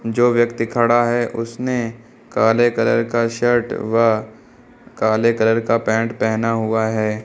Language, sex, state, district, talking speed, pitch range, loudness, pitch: Hindi, male, Uttar Pradesh, Lucknow, 140 wpm, 110-120 Hz, -18 LUFS, 115 Hz